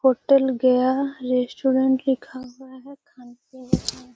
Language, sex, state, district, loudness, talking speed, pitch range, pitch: Magahi, female, Bihar, Gaya, -21 LUFS, 130 wpm, 250-265 Hz, 260 Hz